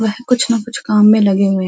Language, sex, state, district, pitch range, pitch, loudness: Hindi, female, Uttar Pradesh, Muzaffarnagar, 205-235 Hz, 215 Hz, -13 LUFS